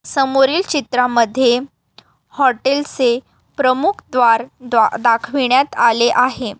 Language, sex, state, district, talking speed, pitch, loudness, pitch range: Marathi, female, Maharashtra, Aurangabad, 90 wpm, 250 Hz, -15 LUFS, 240-270 Hz